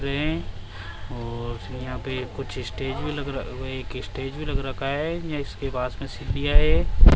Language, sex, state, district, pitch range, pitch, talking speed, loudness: Hindi, male, Rajasthan, Jaipur, 105-135 Hz, 130 Hz, 175 wpm, -28 LUFS